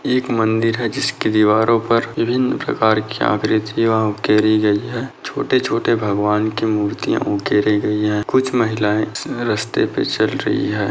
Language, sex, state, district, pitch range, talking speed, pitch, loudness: Hindi, male, Maharashtra, Dhule, 105-115 Hz, 155 wpm, 110 Hz, -18 LUFS